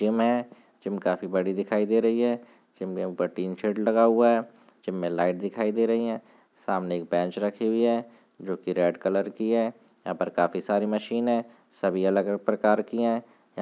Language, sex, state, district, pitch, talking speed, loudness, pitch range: Hindi, male, Chhattisgarh, Rajnandgaon, 105 Hz, 220 wpm, -26 LUFS, 95-115 Hz